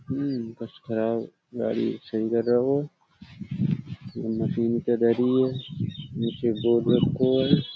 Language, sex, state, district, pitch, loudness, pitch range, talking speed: Hindi, male, Uttar Pradesh, Budaun, 120 Hz, -25 LUFS, 115-130 Hz, 110 wpm